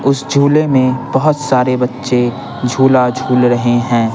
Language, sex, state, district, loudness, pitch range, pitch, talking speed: Hindi, male, Bihar, Patna, -13 LUFS, 125-135 Hz, 130 Hz, 145 wpm